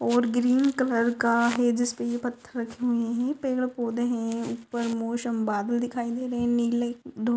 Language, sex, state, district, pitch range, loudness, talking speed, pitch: Hindi, female, Maharashtra, Dhule, 235-245 Hz, -26 LUFS, 180 wpm, 240 Hz